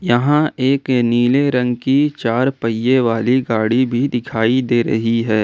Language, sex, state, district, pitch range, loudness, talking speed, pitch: Hindi, male, Jharkhand, Ranchi, 115-130 Hz, -16 LUFS, 155 wpm, 125 Hz